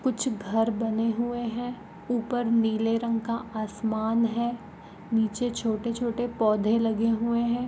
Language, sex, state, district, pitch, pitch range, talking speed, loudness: Magahi, female, Bihar, Gaya, 230 Hz, 220-235 Hz, 135 wpm, -27 LUFS